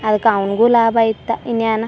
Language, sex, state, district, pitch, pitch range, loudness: Kannada, female, Karnataka, Chamarajanagar, 225 Hz, 220-230 Hz, -16 LUFS